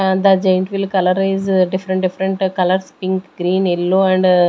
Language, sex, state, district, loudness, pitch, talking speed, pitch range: English, female, Maharashtra, Gondia, -16 LUFS, 185 Hz, 200 wpm, 185-190 Hz